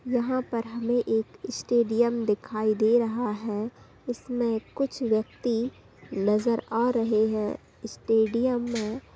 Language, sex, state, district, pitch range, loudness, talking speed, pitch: Hindi, female, Chhattisgarh, Bilaspur, 220-245 Hz, -27 LUFS, 120 wpm, 230 Hz